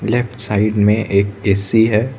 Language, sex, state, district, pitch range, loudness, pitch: Hindi, male, Arunachal Pradesh, Lower Dibang Valley, 100-115 Hz, -16 LUFS, 110 Hz